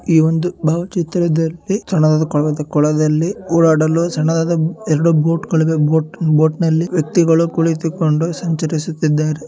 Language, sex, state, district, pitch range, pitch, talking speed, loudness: Kannada, male, Karnataka, Shimoga, 155-170 Hz, 160 Hz, 90 wpm, -16 LUFS